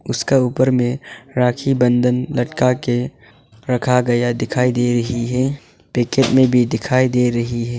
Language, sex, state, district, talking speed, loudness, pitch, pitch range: Hindi, male, Arunachal Pradesh, Longding, 155 wpm, -17 LUFS, 125 Hz, 120-130 Hz